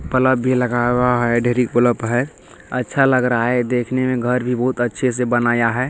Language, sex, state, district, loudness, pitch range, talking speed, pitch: Hindi, male, Bihar, Lakhisarai, -18 LUFS, 120-125 Hz, 225 wpm, 125 Hz